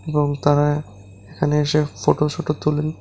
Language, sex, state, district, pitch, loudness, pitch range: Bengali, male, Tripura, West Tripura, 150 Hz, -20 LUFS, 145-150 Hz